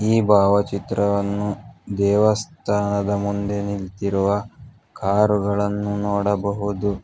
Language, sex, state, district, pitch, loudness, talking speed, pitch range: Kannada, male, Karnataka, Bangalore, 100 Hz, -21 LUFS, 60 wpm, 100-105 Hz